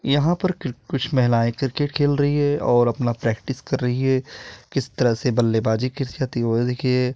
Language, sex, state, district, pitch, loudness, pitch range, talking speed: Hindi, male, Bihar, Purnia, 130 Hz, -22 LUFS, 120-145 Hz, 190 wpm